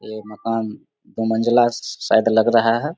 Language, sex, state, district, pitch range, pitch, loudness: Hindi, male, Bihar, Samastipur, 110-120 Hz, 115 Hz, -19 LUFS